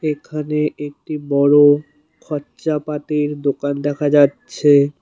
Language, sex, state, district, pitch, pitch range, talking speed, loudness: Bengali, male, West Bengal, Cooch Behar, 145 Hz, 145-150 Hz, 85 wpm, -17 LUFS